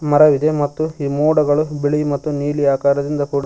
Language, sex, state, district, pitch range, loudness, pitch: Kannada, male, Karnataka, Koppal, 140-150 Hz, -17 LUFS, 145 Hz